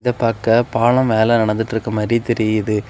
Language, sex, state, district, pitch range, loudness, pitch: Tamil, male, Tamil Nadu, Kanyakumari, 110-120 Hz, -17 LUFS, 115 Hz